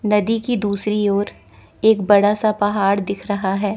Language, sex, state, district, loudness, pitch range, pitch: Hindi, female, Chandigarh, Chandigarh, -18 LUFS, 200-210 Hz, 205 Hz